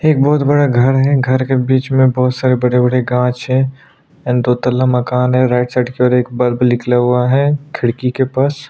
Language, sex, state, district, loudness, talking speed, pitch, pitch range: Hindi, male, Uttarakhand, Tehri Garhwal, -14 LUFS, 220 wpm, 125 Hz, 125-135 Hz